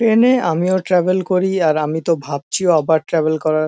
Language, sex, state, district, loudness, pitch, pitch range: Bengali, male, West Bengal, North 24 Parganas, -16 LUFS, 170 Hz, 155-185 Hz